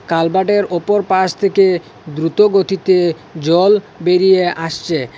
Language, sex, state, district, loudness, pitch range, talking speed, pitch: Bengali, male, Assam, Hailakandi, -14 LUFS, 165-195 Hz, 105 wpm, 180 Hz